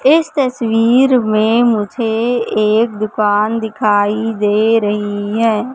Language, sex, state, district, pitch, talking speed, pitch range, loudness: Hindi, female, Madhya Pradesh, Katni, 220 Hz, 105 wpm, 210-235 Hz, -14 LUFS